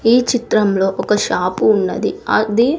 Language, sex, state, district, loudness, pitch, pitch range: Telugu, female, Andhra Pradesh, Sri Satya Sai, -16 LUFS, 220 Hz, 210-240 Hz